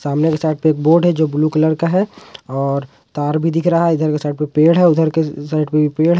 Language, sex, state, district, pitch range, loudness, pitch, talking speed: Hindi, male, Jharkhand, Ranchi, 150-165 Hz, -16 LUFS, 155 Hz, 300 wpm